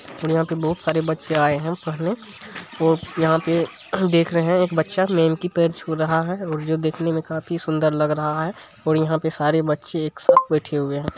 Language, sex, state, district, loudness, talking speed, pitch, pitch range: Hindi, male, Bihar, Supaul, -21 LUFS, 225 wpm, 160 Hz, 155-170 Hz